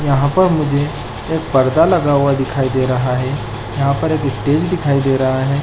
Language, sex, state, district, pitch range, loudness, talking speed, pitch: Hindi, male, Chhattisgarh, Balrampur, 130-145 Hz, -16 LUFS, 200 wpm, 140 Hz